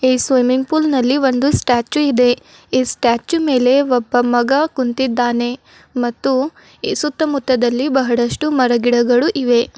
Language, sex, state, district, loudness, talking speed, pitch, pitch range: Kannada, female, Karnataka, Bidar, -16 LUFS, 115 wpm, 255 Hz, 245-275 Hz